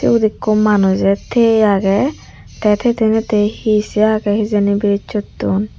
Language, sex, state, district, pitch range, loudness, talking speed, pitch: Chakma, female, Tripura, Unakoti, 200-220 Hz, -15 LUFS, 135 wpm, 210 Hz